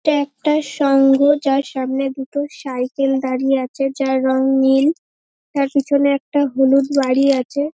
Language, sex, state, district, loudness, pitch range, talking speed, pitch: Bengali, female, West Bengal, North 24 Parganas, -17 LUFS, 265-285 Hz, 145 wpm, 275 Hz